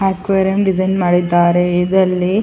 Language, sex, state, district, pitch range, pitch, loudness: Kannada, female, Karnataka, Chamarajanagar, 175-190 Hz, 185 Hz, -14 LUFS